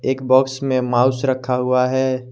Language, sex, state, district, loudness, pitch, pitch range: Hindi, male, Jharkhand, Garhwa, -18 LUFS, 130 Hz, 125-130 Hz